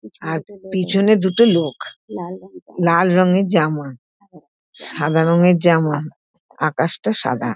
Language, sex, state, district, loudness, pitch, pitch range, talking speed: Bengali, female, West Bengal, North 24 Parganas, -17 LUFS, 170 Hz, 150-185 Hz, 105 wpm